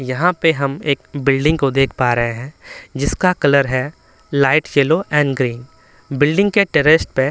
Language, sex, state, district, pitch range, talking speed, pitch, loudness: Hindi, male, Bihar, Patna, 130-155 Hz, 170 wpm, 140 Hz, -16 LUFS